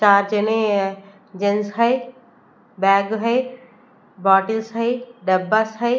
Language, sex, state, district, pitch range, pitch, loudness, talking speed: Hindi, female, Chandigarh, Chandigarh, 200-240 Hz, 220 Hz, -20 LUFS, 80 wpm